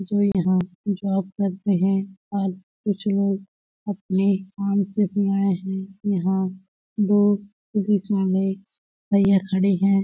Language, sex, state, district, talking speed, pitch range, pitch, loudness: Hindi, female, Chhattisgarh, Balrampur, 115 wpm, 190-200 Hz, 195 Hz, -23 LUFS